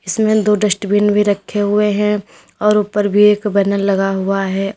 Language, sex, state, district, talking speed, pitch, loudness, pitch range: Hindi, female, Uttar Pradesh, Lalitpur, 200 wpm, 205 Hz, -15 LUFS, 195-210 Hz